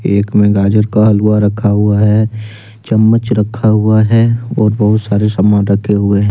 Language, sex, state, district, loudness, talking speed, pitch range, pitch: Hindi, male, Jharkhand, Deoghar, -11 LUFS, 180 wpm, 105-110 Hz, 105 Hz